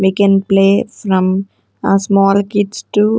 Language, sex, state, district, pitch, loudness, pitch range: English, female, Punjab, Kapurthala, 195 Hz, -14 LUFS, 195-205 Hz